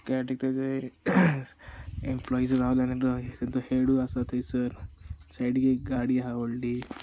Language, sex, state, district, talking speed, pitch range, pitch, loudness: Konkani, male, Goa, North and South Goa, 135 wpm, 125-130 Hz, 125 Hz, -28 LUFS